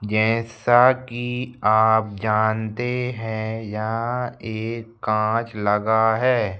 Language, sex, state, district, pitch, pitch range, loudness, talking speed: Hindi, male, Madhya Pradesh, Bhopal, 110 Hz, 110-120 Hz, -21 LUFS, 90 wpm